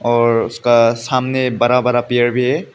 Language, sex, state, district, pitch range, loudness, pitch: Hindi, male, Meghalaya, West Garo Hills, 120-125 Hz, -15 LUFS, 120 Hz